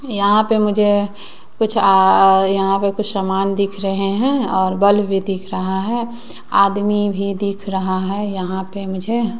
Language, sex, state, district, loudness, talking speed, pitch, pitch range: Hindi, female, Bihar, West Champaran, -17 LUFS, 165 wpm, 200 Hz, 195-210 Hz